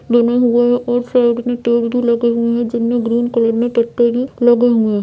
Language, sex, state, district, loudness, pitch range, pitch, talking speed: Hindi, female, Bihar, Jamui, -15 LUFS, 235-245 Hz, 235 Hz, 240 wpm